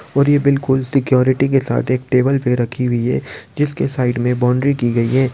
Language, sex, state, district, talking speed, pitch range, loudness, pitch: Hindi, male, Maharashtra, Dhule, 225 wpm, 125-135 Hz, -16 LUFS, 130 Hz